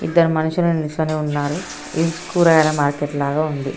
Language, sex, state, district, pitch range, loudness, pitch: Telugu, female, Telangana, Nalgonda, 145-165 Hz, -19 LUFS, 155 Hz